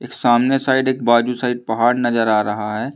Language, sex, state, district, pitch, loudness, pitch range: Hindi, male, Madhya Pradesh, Umaria, 120 Hz, -17 LUFS, 115-125 Hz